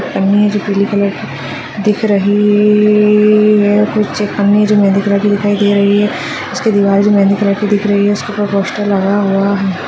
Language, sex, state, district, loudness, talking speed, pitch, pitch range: Hindi, female, Bihar, Jahanabad, -12 LUFS, 180 wpm, 205 Hz, 200-210 Hz